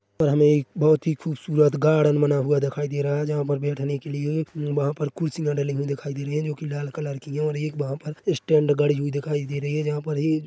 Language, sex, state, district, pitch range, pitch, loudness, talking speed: Hindi, male, Chhattisgarh, Korba, 145-155 Hz, 145 Hz, -24 LUFS, 250 wpm